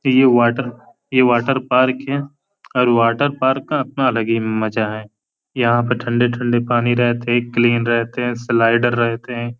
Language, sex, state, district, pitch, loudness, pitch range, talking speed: Hindi, male, Uttar Pradesh, Ghazipur, 120 Hz, -17 LUFS, 120-130 Hz, 165 wpm